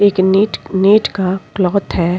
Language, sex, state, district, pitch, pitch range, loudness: Hindi, female, Chhattisgarh, Kabirdham, 190 Hz, 185-200 Hz, -14 LUFS